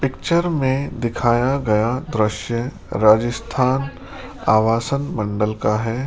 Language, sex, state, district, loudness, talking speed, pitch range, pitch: Hindi, male, Rajasthan, Jaipur, -19 LUFS, 100 wpm, 110-135 Hz, 120 Hz